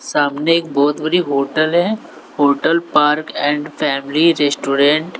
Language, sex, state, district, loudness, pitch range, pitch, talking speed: Hindi, male, Bihar, West Champaran, -16 LUFS, 145-165 Hz, 150 Hz, 140 wpm